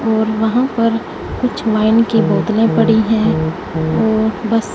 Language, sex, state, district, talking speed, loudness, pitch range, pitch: Hindi, female, Punjab, Fazilka, 140 wpm, -15 LUFS, 215-225 Hz, 220 Hz